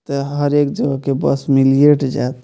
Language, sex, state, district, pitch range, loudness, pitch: Maithili, male, Bihar, Purnia, 135-145 Hz, -15 LUFS, 140 Hz